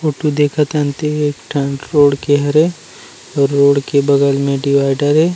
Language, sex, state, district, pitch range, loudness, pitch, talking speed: Chhattisgarhi, male, Chhattisgarh, Rajnandgaon, 140-150 Hz, -14 LUFS, 145 Hz, 190 wpm